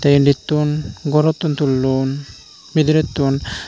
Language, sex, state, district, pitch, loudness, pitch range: Chakma, male, Tripura, Unakoti, 145 Hz, -17 LUFS, 135-155 Hz